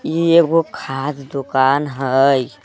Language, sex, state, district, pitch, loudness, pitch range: Magahi, male, Jharkhand, Palamu, 140 Hz, -16 LUFS, 135-160 Hz